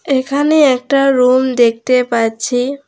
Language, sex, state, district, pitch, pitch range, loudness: Bengali, female, West Bengal, Alipurduar, 255 Hz, 245-275 Hz, -13 LUFS